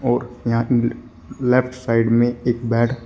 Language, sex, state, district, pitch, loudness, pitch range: Hindi, male, Uttar Pradesh, Shamli, 120 Hz, -19 LUFS, 115-125 Hz